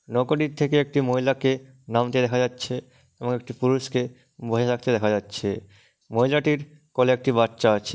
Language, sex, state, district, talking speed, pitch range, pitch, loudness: Bengali, male, West Bengal, Malda, 150 wpm, 120-135 Hz, 125 Hz, -24 LUFS